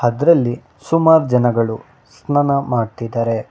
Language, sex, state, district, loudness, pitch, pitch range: Kannada, male, Karnataka, Bangalore, -16 LUFS, 120 Hz, 115-145 Hz